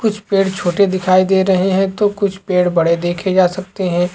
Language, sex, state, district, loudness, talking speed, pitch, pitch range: Hindi, male, Chhattisgarh, Raigarh, -15 LUFS, 230 wpm, 185 Hz, 180-195 Hz